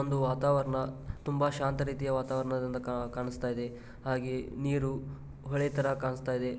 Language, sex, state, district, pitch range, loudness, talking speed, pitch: Kannada, male, Karnataka, Dharwad, 125-140 Hz, -33 LUFS, 125 wpm, 130 Hz